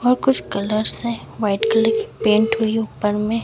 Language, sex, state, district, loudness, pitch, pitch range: Hindi, female, Chhattisgarh, Raipur, -20 LUFS, 225 Hz, 215-225 Hz